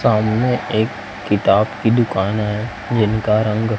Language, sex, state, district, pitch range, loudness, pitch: Hindi, male, Chhattisgarh, Raipur, 105-115 Hz, -18 LUFS, 110 Hz